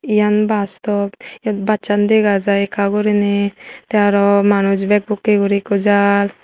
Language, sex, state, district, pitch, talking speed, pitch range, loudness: Chakma, female, Tripura, West Tripura, 205 Hz, 140 wpm, 200-210 Hz, -16 LUFS